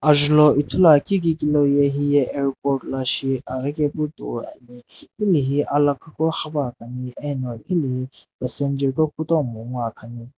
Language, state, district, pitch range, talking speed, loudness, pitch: Sumi, Nagaland, Dimapur, 125-150 Hz, 145 wpm, -21 LUFS, 140 Hz